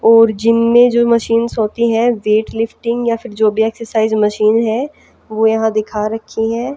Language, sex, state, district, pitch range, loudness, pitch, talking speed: Hindi, female, Haryana, Jhajjar, 220-235 Hz, -14 LUFS, 225 Hz, 175 wpm